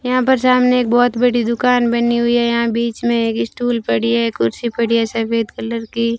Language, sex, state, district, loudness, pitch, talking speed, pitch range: Hindi, female, Rajasthan, Bikaner, -16 LUFS, 235 Hz, 225 wpm, 230-245 Hz